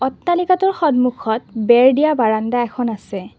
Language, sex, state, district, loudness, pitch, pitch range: Assamese, female, Assam, Kamrup Metropolitan, -16 LUFS, 245 Hz, 225-305 Hz